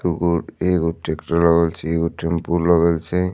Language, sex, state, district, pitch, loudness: Maithili, male, Bihar, Madhepura, 85 Hz, -19 LUFS